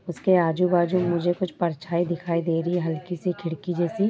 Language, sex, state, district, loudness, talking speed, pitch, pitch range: Hindi, female, Bihar, Jamui, -24 LUFS, 220 wpm, 175 Hz, 170-180 Hz